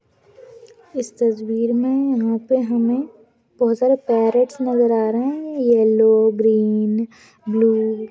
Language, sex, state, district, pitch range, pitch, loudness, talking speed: Hindi, female, Goa, North and South Goa, 220-255 Hz, 235 Hz, -18 LUFS, 125 wpm